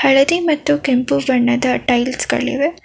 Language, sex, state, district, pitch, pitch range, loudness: Kannada, female, Karnataka, Bangalore, 270 Hz, 250-290 Hz, -16 LUFS